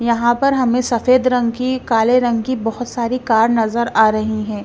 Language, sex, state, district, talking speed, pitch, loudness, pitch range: Hindi, female, Bihar, West Champaran, 205 wpm, 235 Hz, -16 LUFS, 225-250 Hz